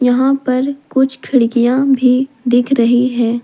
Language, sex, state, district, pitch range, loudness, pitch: Hindi, female, Jharkhand, Deoghar, 245-265 Hz, -14 LUFS, 255 Hz